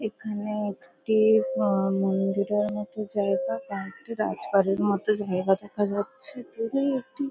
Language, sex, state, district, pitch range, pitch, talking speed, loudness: Bengali, female, West Bengal, Jhargram, 190-215 Hz, 205 Hz, 115 wpm, -27 LUFS